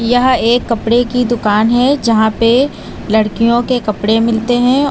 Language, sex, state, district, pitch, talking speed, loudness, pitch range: Hindi, female, Uttar Pradesh, Lucknow, 235 Hz, 160 wpm, -13 LUFS, 225-245 Hz